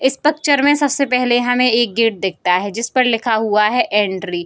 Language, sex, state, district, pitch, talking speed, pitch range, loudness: Hindi, female, Bihar, Darbhanga, 235 Hz, 215 wpm, 210-260 Hz, -16 LUFS